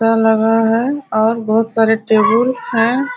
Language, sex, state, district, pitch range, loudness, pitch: Hindi, female, Bihar, Araria, 225-235 Hz, -14 LUFS, 225 Hz